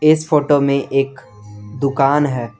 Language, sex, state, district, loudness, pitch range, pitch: Hindi, male, Jharkhand, Garhwa, -16 LUFS, 120-145 Hz, 135 Hz